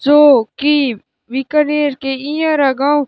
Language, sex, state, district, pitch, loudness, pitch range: Hindi, male, Rajasthan, Bikaner, 290 Hz, -14 LUFS, 270-295 Hz